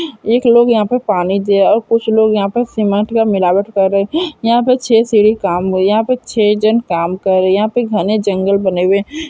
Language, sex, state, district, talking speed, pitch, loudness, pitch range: Hindi, female, Chhattisgarh, Korba, 230 wpm, 215 Hz, -13 LUFS, 195-235 Hz